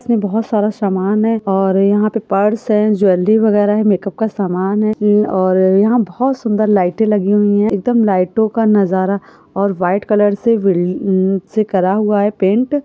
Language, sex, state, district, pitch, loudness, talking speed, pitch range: Hindi, female, Chhattisgarh, Rajnandgaon, 205 Hz, -14 LUFS, 185 wpm, 195-215 Hz